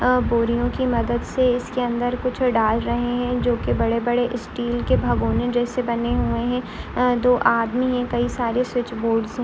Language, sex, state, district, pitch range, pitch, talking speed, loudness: Hindi, female, Uttar Pradesh, Etah, 235-250 Hz, 245 Hz, 190 wpm, -21 LUFS